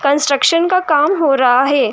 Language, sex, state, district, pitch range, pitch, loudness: Hindi, female, Uttar Pradesh, Jyotiba Phule Nagar, 275-335 Hz, 285 Hz, -13 LUFS